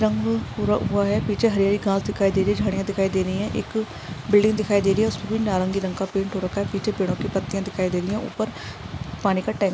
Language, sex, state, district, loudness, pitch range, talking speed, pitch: Hindi, female, Maharashtra, Dhule, -23 LUFS, 185-200 Hz, 270 wpm, 195 Hz